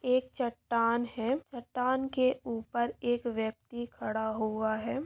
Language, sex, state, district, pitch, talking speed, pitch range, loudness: Hindi, female, Andhra Pradesh, Chittoor, 240 Hz, 130 wpm, 225-255 Hz, -32 LUFS